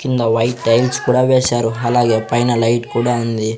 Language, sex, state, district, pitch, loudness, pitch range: Telugu, male, Andhra Pradesh, Sri Satya Sai, 120 Hz, -15 LUFS, 115-125 Hz